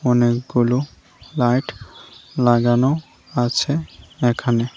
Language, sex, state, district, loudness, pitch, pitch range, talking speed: Bengali, male, Tripura, West Tripura, -19 LUFS, 120 Hz, 120-135 Hz, 65 wpm